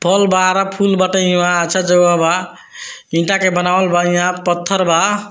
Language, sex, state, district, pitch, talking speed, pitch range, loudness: Bhojpuri, male, Bihar, Muzaffarpur, 180 Hz, 170 wpm, 175-190 Hz, -14 LUFS